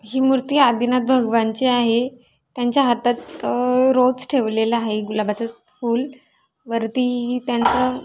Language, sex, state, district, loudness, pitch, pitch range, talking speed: Marathi, female, Maharashtra, Dhule, -19 LUFS, 245 Hz, 230-255 Hz, 120 wpm